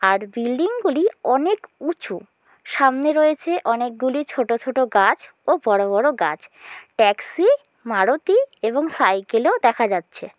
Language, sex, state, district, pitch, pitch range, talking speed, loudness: Bengali, female, West Bengal, Kolkata, 260 Hz, 225-310 Hz, 115 wpm, -20 LUFS